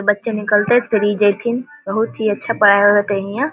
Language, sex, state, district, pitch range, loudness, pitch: Maithili, female, Bihar, Vaishali, 205-235 Hz, -16 LUFS, 210 Hz